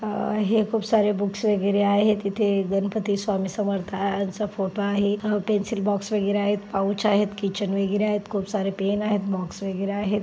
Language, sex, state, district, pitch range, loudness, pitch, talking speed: Marathi, female, Maharashtra, Dhule, 200-210 Hz, -24 LUFS, 205 Hz, 165 wpm